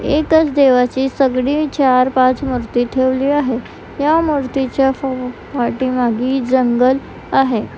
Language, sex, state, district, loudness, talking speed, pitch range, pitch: Marathi, female, Maharashtra, Chandrapur, -16 LUFS, 90 wpm, 255-275 Hz, 260 Hz